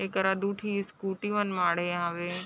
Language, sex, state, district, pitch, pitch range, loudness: Chhattisgarhi, female, Chhattisgarh, Raigarh, 190 Hz, 175-200 Hz, -30 LUFS